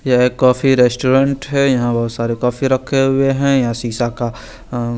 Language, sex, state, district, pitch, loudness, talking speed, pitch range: Hindi, male, Chandigarh, Chandigarh, 125 Hz, -15 LUFS, 180 wpm, 120-135 Hz